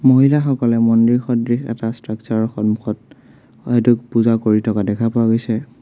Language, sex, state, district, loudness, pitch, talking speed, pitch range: Assamese, male, Assam, Sonitpur, -17 LUFS, 115 Hz, 155 wpm, 110-120 Hz